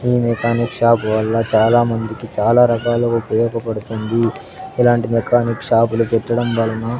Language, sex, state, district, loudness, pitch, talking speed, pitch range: Telugu, male, Andhra Pradesh, Sri Satya Sai, -17 LUFS, 115 Hz, 110 wpm, 115-120 Hz